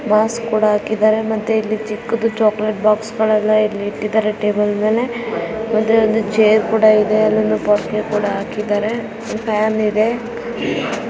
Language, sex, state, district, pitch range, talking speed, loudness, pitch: Kannada, female, Karnataka, Dharwad, 215-220 Hz, 130 wpm, -17 LUFS, 215 Hz